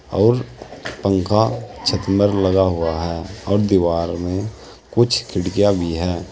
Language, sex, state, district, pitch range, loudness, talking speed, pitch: Hindi, male, Uttar Pradesh, Saharanpur, 90-100 Hz, -19 LUFS, 135 wpm, 95 Hz